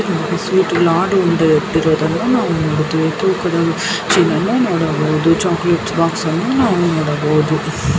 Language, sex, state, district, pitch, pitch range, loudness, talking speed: Kannada, female, Karnataka, Belgaum, 165 Hz, 160-185 Hz, -15 LUFS, 105 wpm